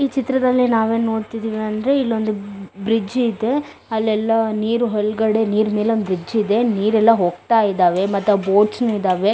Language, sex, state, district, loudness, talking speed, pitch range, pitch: Kannada, female, Karnataka, Bellary, -18 LUFS, 165 wpm, 205-230 Hz, 220 Hz